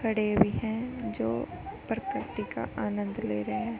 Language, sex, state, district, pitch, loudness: Hindi, female, Uttar Pradesh, Hamirpur, 205 Hz, -31 LUFS